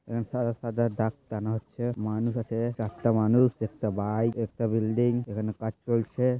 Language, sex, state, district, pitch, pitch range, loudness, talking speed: Bengali, male, West Bengal, Malda, 115 Hz, 110-120 Hz, -28 LUFS, 150 wpm